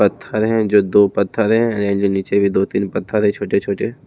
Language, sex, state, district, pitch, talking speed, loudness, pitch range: Hindi, male, Himachal Pradesh, Shimla, 100 Hz, 220 wpm, -17 LUFS, 100-110 Hz